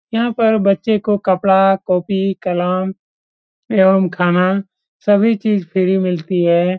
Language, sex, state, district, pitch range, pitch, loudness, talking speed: Hindi, male, Bihar, Supaul, 185-210 Hz, 190 Hz, -16 LUFS, 125 wpm